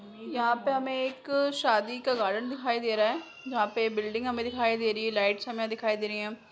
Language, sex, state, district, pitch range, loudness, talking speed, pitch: Hindi, female, Bihar, Bhagalpur, 215-255 Hz, -29 LUFS, 240 wpm, 230 Hz